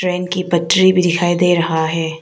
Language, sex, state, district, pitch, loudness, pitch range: Hindi, female, Arunachal Pradesh, Papum Pare, 175 Hz, -15 LUFS, 165-180 Hz